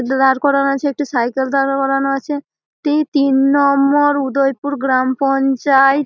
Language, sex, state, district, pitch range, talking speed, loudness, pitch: Bengali, female, West Bengal, Malda, 270-285 Hz, 130 wpm, -15 LUFS, 275 Hz